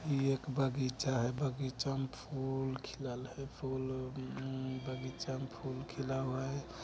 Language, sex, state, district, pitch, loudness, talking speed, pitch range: Angika, male, Bihar, Begusarai, 130 Hz, -39 LUFS, 150 wpm, 130-135 Hz